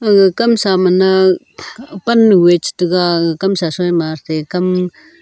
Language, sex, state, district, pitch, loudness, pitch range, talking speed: Wancho, female, Arunachal Pradesh, Longding, 185 Hz, -13 LUFS, 175-210 Hz, 150 wpm